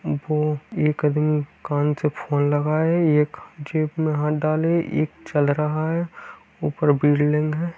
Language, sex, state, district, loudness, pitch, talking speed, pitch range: Hindi, male, Bihar, Kishanganj, -22 LUFS, 150 Hz, 140 wpm, 150-155 Hz